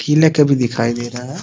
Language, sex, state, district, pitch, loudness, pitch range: Hindi, male, Bihar, Muzaffarpur, 130 Hz, -16 LUFS, 120-150 Hz